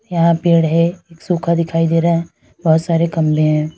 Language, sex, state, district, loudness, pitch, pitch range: Hindi, female, Uttar Pradesh, Lalitpur, -16 LUFS, 165 Hz, 160-170 Hz